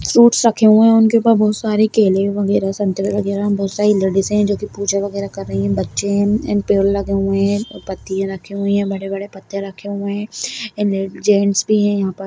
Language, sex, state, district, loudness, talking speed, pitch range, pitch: Kumaoni, female, Uttarakhand, Tehri Garhwal, -16 LUFS, 225 wpm, 195-210 Hz, 200 Hz